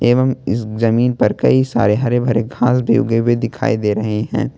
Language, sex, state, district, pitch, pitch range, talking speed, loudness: Hindi, male, Jharkhand, Ranchi, 120 Hz, 110-125 Hz, 210 wpm, -16 LUFS